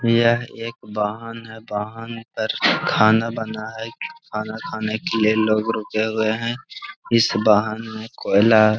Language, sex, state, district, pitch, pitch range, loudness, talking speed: Hindi, male, Bihar, Gaya, 110 Hz, 110-115 Hz, -21 LUFS, 150 wpm